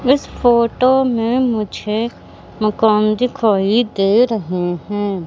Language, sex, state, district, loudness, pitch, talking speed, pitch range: Hindi, female, Madhya Pradesh, Katni, -16 LUFS, 220 Hz, 100 wpm, 205-245 Hz